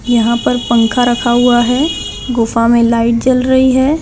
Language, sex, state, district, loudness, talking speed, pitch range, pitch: Hindi, female, Bihar, Jahanabad, -12 LUFS, 180 wpm, 235-255 Hz, 240 Hz